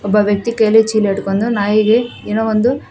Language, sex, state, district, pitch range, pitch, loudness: Kannada, female, Karnataka, Koppal, 205-225 Hz, 215 Hz, -14 LUFS